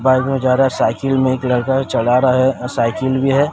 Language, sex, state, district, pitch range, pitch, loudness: Hindi, male, Odisha, Sambalpur, 125-135 Hz, 130 Hz, -16 LUFS